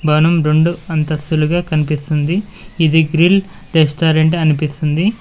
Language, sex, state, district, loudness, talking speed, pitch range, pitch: Telugu, male, Telangana, Mahabubabad, -15 LUFS, 90 wpm, 155-170 Hz, 160 Hz